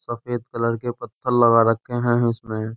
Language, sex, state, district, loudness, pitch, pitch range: Hindi, male, Uttar Pradesh, Jyotiba Phule Nagar, -21 LUFS, 120 Hz, 115-120 Hz